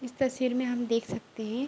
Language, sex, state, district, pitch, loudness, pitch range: Hindi, female, Bihar, Araria, 250 Hz, -30 LUFS, 230-255 Hz